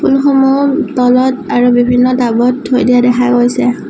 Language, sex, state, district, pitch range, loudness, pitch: Assamese, female, Assam, Sonitpur, 245-265 Hz, -11 LUFS, 250 Hz